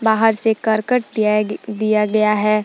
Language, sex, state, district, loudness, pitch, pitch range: Hindi, female, Jharkhand, Palamu, -17 LUFS, 215 Hz, 210-225 Hz